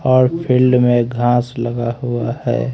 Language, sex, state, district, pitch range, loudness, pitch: Hindi, male, Haryana, Rohtak, 120-125 Hz, -16 LUFS, 120 Hz